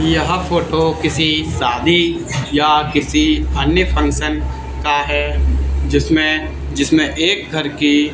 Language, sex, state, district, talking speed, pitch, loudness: Hindi, male, Haryana, Charkhi Dadri, 120 wpm, 150 Hz, -16 LUFS